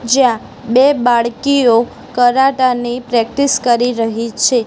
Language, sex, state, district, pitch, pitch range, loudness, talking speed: Gujarati, female, Gujarat, Gandhinagar, 245 Hz, 235-260 Hz, -13 LUFS, 115 wpm